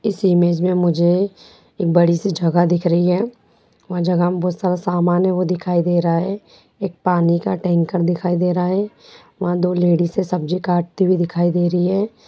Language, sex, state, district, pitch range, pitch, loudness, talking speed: Hindi, female, Bihar, Sitamarhi, 175-185 Hz, 180 Hz, -18 LUFS, 190 wpm